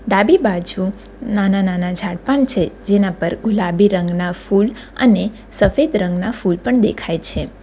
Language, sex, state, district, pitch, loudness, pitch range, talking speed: Gujarati, female, Gujarat, Valsad, 200 Hz, -17 LUFS, 180-225 Hz, 150 wpm